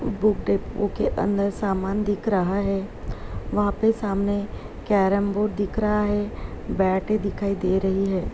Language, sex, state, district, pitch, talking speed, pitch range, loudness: Hindi, female, Uttar Pradesh, Jyotiba Phule Nagar, 200 Hz, 160 wpm, 195-210 Hz, -24 LUFS